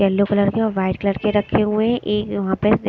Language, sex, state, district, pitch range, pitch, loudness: Hindi, female, Maharashtra, Mumbai Suburban, 185-210 Hz, 200 Hz, -19 LUFS